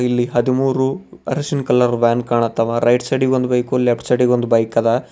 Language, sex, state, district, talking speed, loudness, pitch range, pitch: Kannada, male, Karnataka, Bidar, 200 wpm, -17 LUFS, 120-130 Hz, 125 Hz